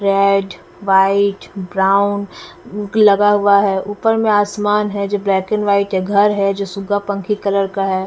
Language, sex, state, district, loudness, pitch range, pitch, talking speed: Hindi, female, Bihar, West Champaran, -15 LUFS, 195-205 Hz, 200 Hz, 165 wpm